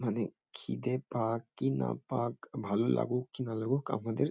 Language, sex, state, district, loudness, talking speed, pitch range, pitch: Bengali, male, West Bengal, Kolkata, -34 LUFS, 165 wpm, 115-130 Hz, 120 Hz